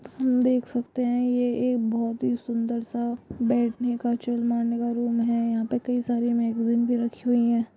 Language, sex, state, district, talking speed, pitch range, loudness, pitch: Hindi, female, Bihar, Purnia, 195 wpm, 235-245 Hz, -25 LUFS, 240 Hz